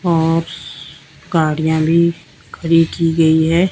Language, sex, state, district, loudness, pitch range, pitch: Hindi, female, Himachal Pradesh, Shimla, -15 LUFS, 155-165 Hz, 160 Hz